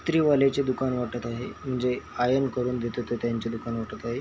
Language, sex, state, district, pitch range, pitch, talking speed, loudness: Marathi, male, Maharashtra, Chandrapur, 120-130 Hz, 125 Hz, 200 wpm, -27 LUFS